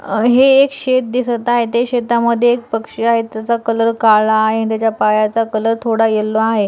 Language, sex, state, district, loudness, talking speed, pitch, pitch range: Marathi, female, Maharashtra, Dhule, -14 LUFS, 190 wpm, 230 Hz, 220-240 Hz